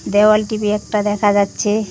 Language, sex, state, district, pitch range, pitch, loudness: Bengali, female, West Bengal, Cooch Behar, 205-215 Hz, 210 Hz, -16 LUFS